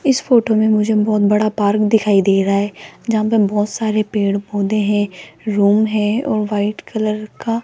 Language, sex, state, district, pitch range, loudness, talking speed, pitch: Hindi, female, Rajasthan, Jaipur, 205-220 Hz, -16 LUFS, 190 wpm, 210 Hz